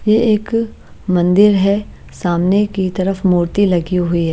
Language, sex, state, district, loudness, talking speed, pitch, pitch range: Hindi, female, Himachal Pradesh, Shimla, -15 LUFS, 150 wpm, 190 Hz, 175-205 Hz